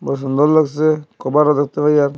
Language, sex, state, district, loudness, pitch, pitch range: Bengali, male, Assam, Hailakandi, -16 LUFS, 150 Hz, 140-150 Hz